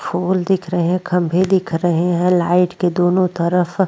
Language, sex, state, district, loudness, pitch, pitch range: Hindi, female, Uttar Pradesh, Jyotiba Phule Nagar, -17 LUFS, 180 Hz, 175-185 Hz